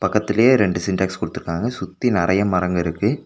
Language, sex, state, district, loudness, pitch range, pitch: Tamil, male, Tamil Nadu, Nilgiris, -19 LUFS, 90-105 Hz, 95 Hz